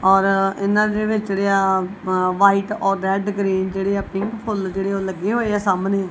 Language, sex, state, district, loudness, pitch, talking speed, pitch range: Punjabi, female, Punjab, Kapurthala, -20 LUFS, 195 Hz, 165 wpm, 190-205 Hz